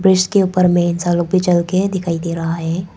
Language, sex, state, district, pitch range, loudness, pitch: Hindi, female, Arunachal Pradesh, Papum Pare, 170-185 Hz, -16 LUFS, 175 Hz